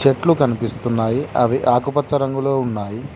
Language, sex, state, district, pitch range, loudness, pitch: Telugu, male, Telangana, Mahabubabad, 120-140 Hz, -19 LUFS, 130 Hz